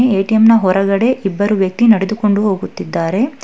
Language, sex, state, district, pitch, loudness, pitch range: Kannada, female, Karnataka, Bangalore, 205 Hz, -14 LUFS, 195-230 Hz